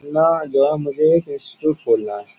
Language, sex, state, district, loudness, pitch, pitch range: Hindi, male, Uttar Pradesh, Jyotiba Phule Nagar, -18 LUFS, 150 Hz, 140-160 Hz